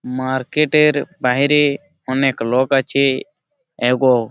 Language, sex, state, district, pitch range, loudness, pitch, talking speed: Bengali, male, West Bengal, Malda, 130-150 Hz, -17 LUFS, 135 Hz, 95 wpm